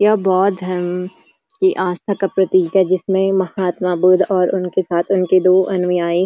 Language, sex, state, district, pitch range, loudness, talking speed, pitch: Hindi, female, Uttarakhand, Uttarkashi, 180-190 Hz, -16 LUFS, 170 wpm, 185 Hz